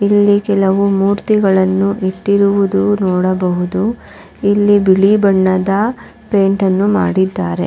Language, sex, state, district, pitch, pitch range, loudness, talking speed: Kannada, female, Karnataka, Raichur, 195 Hz, 190-205 Hz, -13 LUFS, 80 wpm